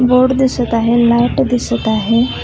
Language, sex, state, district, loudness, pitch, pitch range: Marathi, female, Maharashtra, Solapur, -13 LUFS, 240 Hz, 230-250 Hz